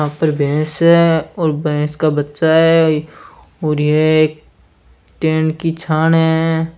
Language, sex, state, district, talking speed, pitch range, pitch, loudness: Hindi, male, Rajasthan, Churu, 135 wpm, 150-160 Hz, 155 Hz, -15 LUFS